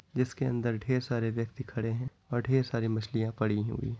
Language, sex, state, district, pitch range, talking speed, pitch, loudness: Hindi, male, Uttar Pradesh, Etah, 115-130 Hz, 210 wpm, 120 Hz, -32 LUFS